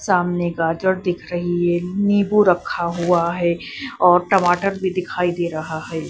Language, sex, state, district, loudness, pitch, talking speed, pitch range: Hindi, female, Bihar, Katihar, -19 LUFS, 175 Hz, 155 wpm, 170-185 Hz